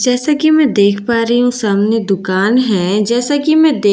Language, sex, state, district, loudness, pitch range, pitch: Hindi, female, Bihar, Katihar, -13 LUFS, 205-275 Hz, 235 Hz